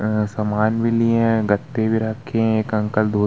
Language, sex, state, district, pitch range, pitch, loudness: Hindi, male, Bihar, Vaishali, 105-115 Hz, 110 Hz, -20 LUFS